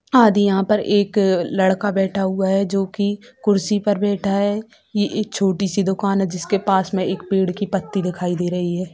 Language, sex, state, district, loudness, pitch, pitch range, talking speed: Hindi, female, Bihar, Sitamarhi, -19 LUFS, 195 Hz, 190-205 Hz, 200 wpm